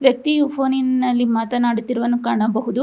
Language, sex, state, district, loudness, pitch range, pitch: Kannada, female, Karnataka, Bangalore, -19 LUFS, 235-265 Hz, 245 Hz